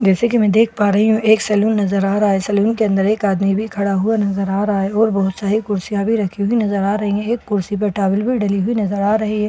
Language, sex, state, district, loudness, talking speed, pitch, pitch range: Hindi, female, Bihar, Katihar, -17 LUFS, 295 wpm, 205 Hz, 200-220 Hz